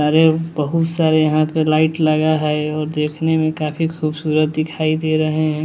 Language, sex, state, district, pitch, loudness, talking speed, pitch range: Hindi, male, Bihar, West Champaran, 155 Hz, -17 LUFS, 180 wpm, 155-160 Hz